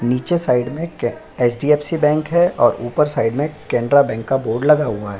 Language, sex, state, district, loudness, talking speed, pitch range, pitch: Hindi, male, Bihar, Lakhisarai, -18 LUFS, 205 wpm, 120-155 Hz, 145 Hz